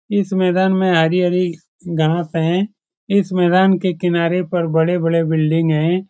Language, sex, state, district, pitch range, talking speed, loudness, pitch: Hindi, male, Bihar, Supaul, 165-185 Hz, 145 wpm, -17 LUFS, 180 Hz